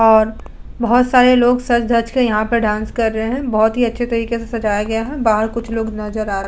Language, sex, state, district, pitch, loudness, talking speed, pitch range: Hindi, female, Uttar Pradesh, Budaun, 230 Hz, -16 LUFS, 250 wpm, 220-240 Hz